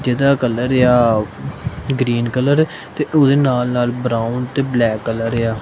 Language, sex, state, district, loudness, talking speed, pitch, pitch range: Punjabi, male, Punjab, Kapurthala, -17 LUFS, 150 wpm, 125 Hz, 115-135 Hz